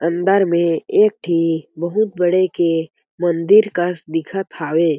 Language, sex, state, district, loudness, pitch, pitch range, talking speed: Chhattisgarhi, male, Chhattisgarh, Jashpur, -17 LUFS, 175 Hz, 165-190 Hz, 130 wpm